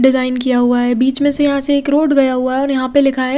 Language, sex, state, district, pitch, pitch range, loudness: Hindi, female, Odisha, Khordha, 265 Hz, 255-285 Hz, -14 LUFS